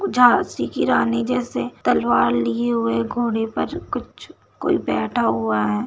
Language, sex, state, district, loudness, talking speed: Hindi, female, Bihar, Saharsa, -20 LUFS, 145 wpm